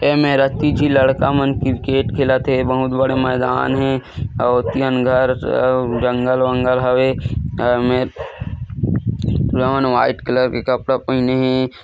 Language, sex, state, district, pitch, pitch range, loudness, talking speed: Chhattisgarhi, male, Chhattisgarh, Korba, 130 Hz, 125-135 Hz, -17 LUFS, 140 wpm